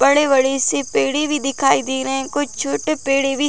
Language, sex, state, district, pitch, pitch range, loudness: Hindi, female, Jharkhand, Sahebganj, 275 Hz, 265-290 Hz, -18 LUFS